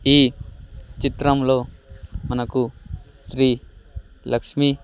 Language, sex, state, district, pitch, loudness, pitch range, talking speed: Telugu, male, Andhra Pradesh, Sri Satya Sai, 120 Hz, -21 LUFS, 90-130 Hz, 75 wpm